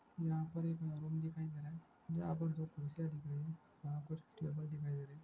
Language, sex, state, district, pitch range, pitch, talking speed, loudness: Hindi, male, Chhattisgarh, Bastar, 150-165 Hz, 160 Hz, 250 wpm, -44 LUFS